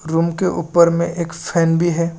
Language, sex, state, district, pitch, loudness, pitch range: Hindi, male, Assam, Kamrup Metropolitan, 170 Hz, -17 LUFS, 165-170 Hz